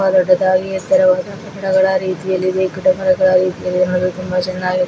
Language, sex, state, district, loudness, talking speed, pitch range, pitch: Kannada, female, Karnataka, Chamarajanagar, -16 LUFS, 125 wpm, 185-200 Hz, 190 Hz